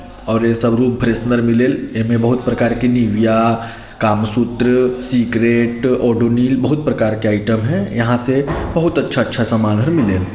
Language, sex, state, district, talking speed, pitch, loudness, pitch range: Hindi, male, Chhattisgarh, Sarguja, 160 wpm, 120 Hz, -15 LUFS, 115-125 Hz